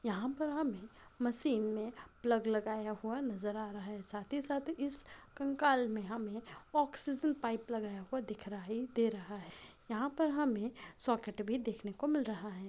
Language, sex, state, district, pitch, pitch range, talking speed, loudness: Hindi, female, Bihar, Saran, 230 Hz, 215-275 Hz, 180 wpm, -38 LUFS